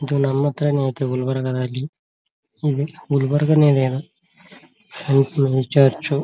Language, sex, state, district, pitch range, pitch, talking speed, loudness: Kannada, male, Karnataka, Gulbarga, 130-145 Hz, 140 Hz, 115 wpm, -19 LUFS